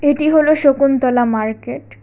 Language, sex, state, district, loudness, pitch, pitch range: Bengali, female, Tripura, West Tripura, -14 LUFS, 275 Hz, 225-295 Hz